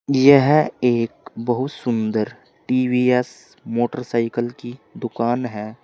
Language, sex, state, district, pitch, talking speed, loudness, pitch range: Hindi, male, Uttar Pradesh, Saharanpur, 125 Hz, 95 wpm, -20 LUFS, 115-125 Hz